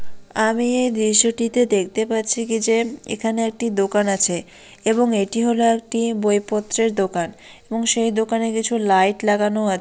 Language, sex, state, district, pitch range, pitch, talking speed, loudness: Bengali, female, West Bengal, Dakshin Dinajpur, 205-230 Hz, 225 Hz, 145 wpm, -19 LUFS